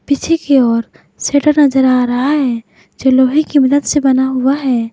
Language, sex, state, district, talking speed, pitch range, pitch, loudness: Hindi, female, Jharkhand, Garhwa, 195 wpm, 255-285 Hz, 270 Hz, -13 LUFS